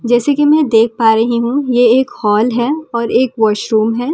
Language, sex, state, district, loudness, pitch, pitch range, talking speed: Hindi, female, Delhi, New Delhi, -13 LUFS, 240 Hz, 225-260 Hz, 245 wpm